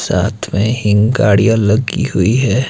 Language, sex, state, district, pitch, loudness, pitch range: Hindi, male, Himachal Pradesh, Shimla, 110 Hz, -13 LUFS, 105-120 Hz